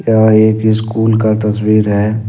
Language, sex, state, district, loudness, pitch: Hindi, male, Jharkhand, Ranchi, -12 LUFS, 110 Hz